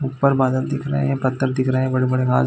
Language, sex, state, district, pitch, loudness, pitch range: Hindi, male, Chhattisgarh, Bilaspur, 130 Hz, -20 LUFS, 130-135 Hz